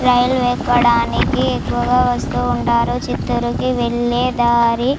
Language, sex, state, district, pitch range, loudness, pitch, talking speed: Telugu, female, Andhra Pradesh, Chittoor, 240-250 Hz, -16 LUFS, 245 Hz, 95 wpm